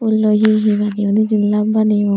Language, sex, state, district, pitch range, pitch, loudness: Chakma, female, Tripura, Dhalai, 210-215 Hz, 210 Hz, -15 LUFS